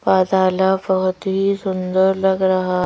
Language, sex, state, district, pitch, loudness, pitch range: Hindi, female, Madhya Pradesh, Bhopal, 190 Hz, -18 LUFS, 185-190 Hz